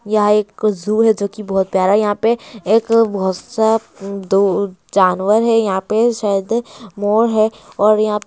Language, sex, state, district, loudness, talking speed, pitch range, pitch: Hindi, female, West Bengal, Purulia, -16 LUFS, 165 wpm, 200-225 Hz, 210 Hz